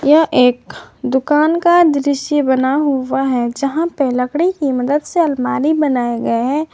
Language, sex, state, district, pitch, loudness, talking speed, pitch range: Hindi, female, Jharkhand, Garhwa, 280 Hz, -15 LUFS, 160 wpm, 260-305 Hz